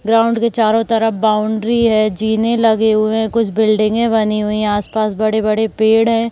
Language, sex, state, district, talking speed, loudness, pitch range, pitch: Hindi, female, Chhattisgarh, Bilaspur, 180 wpm, -15 LUFS, 215-225 Hz, 220 Hz